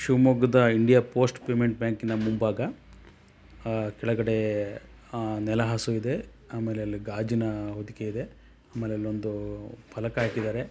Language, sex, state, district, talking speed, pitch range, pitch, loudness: Kannada, male, Karnataka, Shimoga, 120 wpm, 105-120 Hz, 110 Hz, -27 LUFS